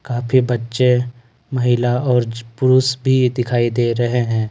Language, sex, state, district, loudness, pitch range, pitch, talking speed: Hindi, male, Jharkhand, Ranchi, -17 LUFS, 120-125 Hz, 120 Hz, 135 wpm